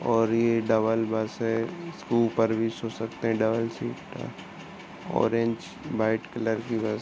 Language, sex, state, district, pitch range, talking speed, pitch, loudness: Hindi, male, Uttar Pradesh, Ghazipur, 110-115 Hz, 160 wpm, 115 Hz, -27 LUFS